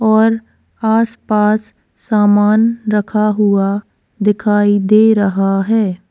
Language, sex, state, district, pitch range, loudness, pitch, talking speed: Hindi, female, Goa, North and South Goa, 205-220 Hz, -14 LUFS, 210 Hz, 90 wpm